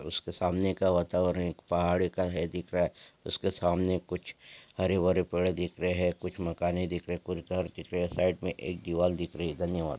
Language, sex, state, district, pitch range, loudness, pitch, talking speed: Hindi, male, Maharashtra, Solapur, 85-90 Hz, -31 LUFS, 90 Hz, 220 wpm